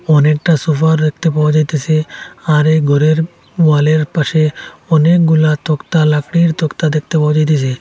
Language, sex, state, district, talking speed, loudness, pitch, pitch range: Bengali, male, Assam, Hailakandi, 130 wpm, -13 LUFS, 155 Hz, 150-160 Hz